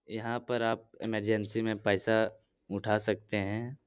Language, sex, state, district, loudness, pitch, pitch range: Hindi, male, Bihar, Lakhisarai, -32 LUFS, 110 Hz, 105-115 Hz